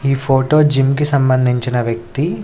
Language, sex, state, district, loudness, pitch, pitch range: Telugu, male, Andhra Pradesh, Sri Satya Sai, -15 LUFS, 135 Hz, 125-145 Hz